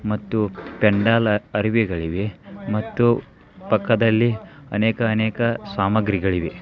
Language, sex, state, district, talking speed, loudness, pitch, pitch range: Kannada, male, Karnataka, Belgaum, 90 wpm, -21 LUFS, 110 Hz, 105-115 Hz